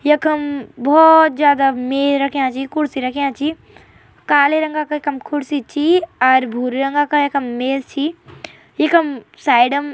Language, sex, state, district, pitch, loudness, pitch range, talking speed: Garhwali, female, Uttarakhand, Tehri Garhwal, 285 Hz, -16 LUFS, 270-300 Hz, 150 wpm